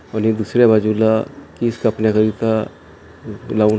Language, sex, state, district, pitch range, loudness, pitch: Marathi, male, Maharashtra, Gondia, 110-115 Hz, -17 LUFS, 110 Hz